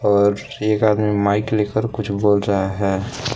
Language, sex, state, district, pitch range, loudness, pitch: Hindi, male, Jharkhand, Palamu, 100-110 Hz, -19 LUFS, 105 Hz